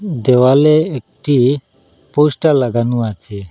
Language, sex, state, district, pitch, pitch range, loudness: Bengali, male, Assam, Hailakandi, 130 Hz, 120-150 Hz, -14 LUFS